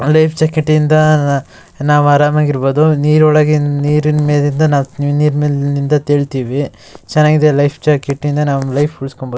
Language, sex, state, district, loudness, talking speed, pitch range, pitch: Kannada, male, Karnataka, Shimoga, -13 LUFS, 135 wpm, 140-150 Hz, 145 Hz